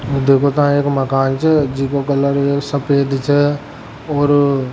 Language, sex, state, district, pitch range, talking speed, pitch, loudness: Rajasthani, male, Rajasthan, Churu, 135-145 Hz, 140 wpm, 140 Hz, -15 LUFS